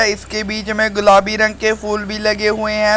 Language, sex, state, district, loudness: Hindi, male, Uttar Pradesh, Shamli, -16 LUFS